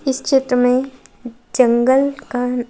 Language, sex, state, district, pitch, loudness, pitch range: Hindi, female, Madhya Pradesh, Bhopal, 250 Hz, -16 LUFS, 245-265 Hz